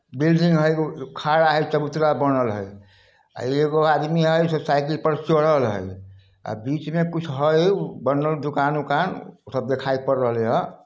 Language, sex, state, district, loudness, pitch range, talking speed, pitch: Hindi, male, Bihar, Samastipur, -21 LUFS, 130-155 Hz, 155 wpm, 150 Hz